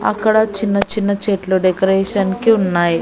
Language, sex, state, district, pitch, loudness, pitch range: Telugu, female, Andhra Pradesh, Annamaya, 200 Hz, -16 LUFS, 190-210 Hz